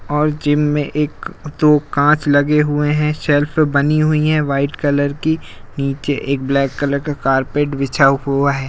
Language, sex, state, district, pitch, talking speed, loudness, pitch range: Hindi, male, Uttar Pradesh, Jalaun, 145 Hz, 175 wpm, -16 LUFS, 140-150 Hz